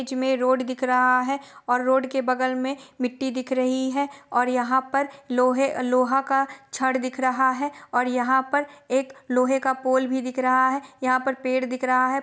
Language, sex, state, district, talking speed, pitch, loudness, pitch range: Hindi, female, Chhattisgarh, Bilaspur, 205 wpm, 260 Hz, -23 LUFS, 255-270 Hz